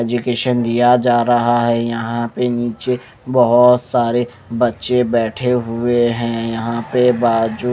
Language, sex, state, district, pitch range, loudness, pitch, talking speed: Hindi, male, Maharashtra, Mumbai Suburban, 115-125 Hz, -16 LUFS, 120 Hz, 130 wpm